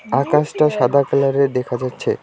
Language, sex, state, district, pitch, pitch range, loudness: Bengali, male, West Bengal, Alipurduar, 140 Hz, 130-150 Hz, -17 LUFS